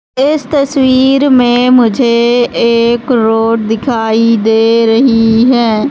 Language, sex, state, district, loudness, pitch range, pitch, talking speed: Hindi, female, Madhya Pradesh, Katni, -9 LUFS, 225-255 Hz, 235 Hz, 100 wpm